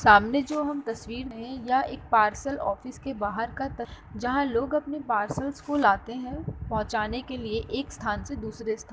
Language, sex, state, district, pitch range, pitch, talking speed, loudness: Hindi, female, Uttar Pradesh, Muzaffarnagar, 220-275 Hz, 245 Hz, 175 wpm, -28 LUFS